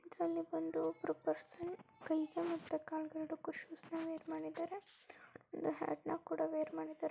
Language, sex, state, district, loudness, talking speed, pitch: Kannada, female, Karnataka, Dakshina Kannada, -42 LUFS, 145 wpm, 315 Hz